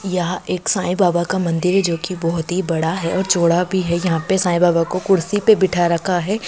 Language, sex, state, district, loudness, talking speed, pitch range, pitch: Hindi, female, Maharashtra, Dhule, -18 LUFS, 250 wpm, 170-190 Hz, 180 Hz